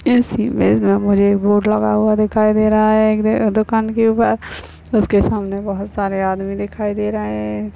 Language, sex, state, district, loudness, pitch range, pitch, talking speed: Hindi, male, Maharashtra, Nagpur, -16 LUFS, 200-215 Hz, 210 Hz, 195 wpm